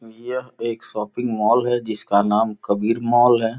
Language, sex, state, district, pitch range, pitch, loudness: Hindi, male, Uttar Pradesh, Gorakhpur, 110-120 Hz, 115 Hz, -20 LUFS